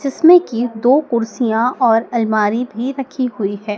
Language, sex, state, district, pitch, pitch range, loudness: Hindi, female, Madhya Pradesh, Dhar, 240 Hz, 225-260 Hz, -16 LUFS